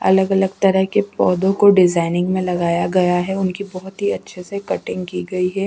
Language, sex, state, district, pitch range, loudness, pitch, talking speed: Hindi, female, Delhi, New Delhi, 180-195 Hz, -18 LUFS, 185 Hz, 200 wpm